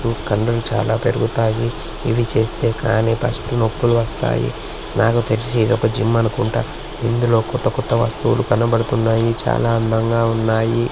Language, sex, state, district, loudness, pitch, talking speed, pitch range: Telugu, male, Andhra Pradesh, Srikakulam, -18 LUFS, 115 Hz, 130 wpm, 110-120 Hz